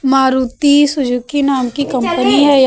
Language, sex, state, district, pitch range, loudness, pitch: Hindi, female, Uttar Pradesh, Lucknow, 260-285 Hz, -13 LUFS, 270 Hz